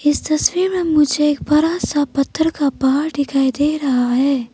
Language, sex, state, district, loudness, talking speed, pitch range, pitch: Hindi, female, Arunachal Pradesh, Papum Pare, -17 LUFS, 185 wpm, 275-305 Hz, 295 Hz